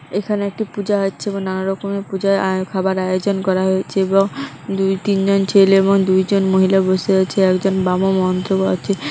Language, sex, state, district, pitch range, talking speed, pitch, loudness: Bengali, female, West Bengal, Dakshin Dinajpur, 190-195 Hz, 170 wpm, 195 Hz, -17 LUFS